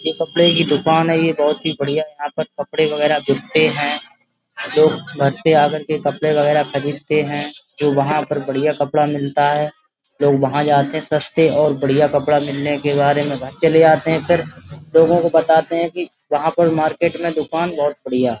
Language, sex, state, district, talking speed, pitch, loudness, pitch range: Hindi, male, Uttar Pradesh, Budaun, 190 wpm, 150 Hz, -17 LUFS, 145-160 Hz